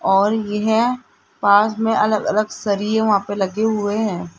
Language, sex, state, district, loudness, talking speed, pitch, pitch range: Hindi, female, Rajasthan, Jaipur, -18 LUFS, 165 wpm, 215 Hz, 205-220 Hz